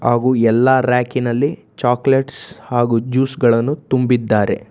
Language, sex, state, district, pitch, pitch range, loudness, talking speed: Kannada, male, Karnataka, Bangalore, 125 Hz, 120-130 Hz, -16 LUFS, 115 wpm